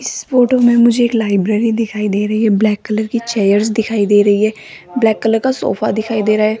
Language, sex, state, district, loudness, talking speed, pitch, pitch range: Hindi, female, Rajasthan, Jaipur, -14 LUFS, 235 wpm, 220 Hz, 210-230 Hz